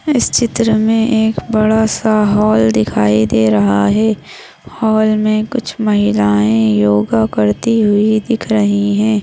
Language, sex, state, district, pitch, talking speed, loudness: Hindi, female, Maharashtra, Solapur, 215 Hz, 135 wpm, -13 LUFS